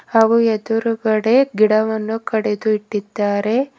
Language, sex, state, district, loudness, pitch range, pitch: Kannada, female, Karnataka, Bidar, -17 LUFS, 215-225 Hz, 220 Hz